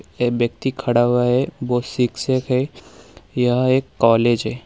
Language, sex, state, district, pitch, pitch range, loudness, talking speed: Hindi, male, Uttar Pradesh, Lalitpur, 125 Hz, 120-130 Hz, -19 LUFS, 155 wpm